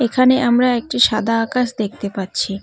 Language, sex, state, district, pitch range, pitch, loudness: Bengali, female, West Bengal, Cooch Behar, 200-245 Hz, 230 Hz, -17 LUFS